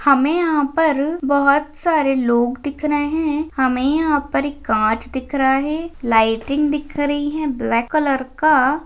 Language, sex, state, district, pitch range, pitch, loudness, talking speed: Hindi, female, Maharashtra, Pune, 265-300 Hz, 285 Hz, -18 LUFS, 165 wpm